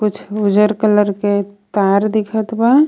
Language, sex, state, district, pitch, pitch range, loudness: Bhojpuri, female, Jharkhand, Palamu, 210 Hz, 205-215 Hz, -16 LUFS